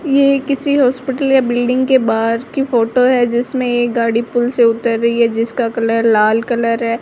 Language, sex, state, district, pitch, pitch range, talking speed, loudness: Hindi, female, Rajasthan, Barmer, 240 Hz, 230-260 Hz, 195 wpm, -14 LUFS